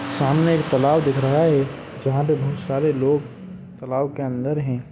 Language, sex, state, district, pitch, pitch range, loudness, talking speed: Hindi, male, Bihar, Gopalganj, 140 Hz, 135-155 Hz, -21 LUFS, 185 wpm